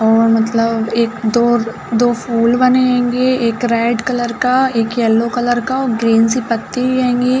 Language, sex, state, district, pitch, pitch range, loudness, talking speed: Hindi, female, Uttar Pradesh, Budaun, 240 Hz, 230-250 Hz, -14 LUFS, 170 wpm